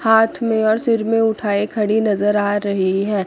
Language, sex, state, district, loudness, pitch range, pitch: Hindi, female, Chandigarh, Chandigarh, -17 LUFS, 205-220 Hz, 215 Hz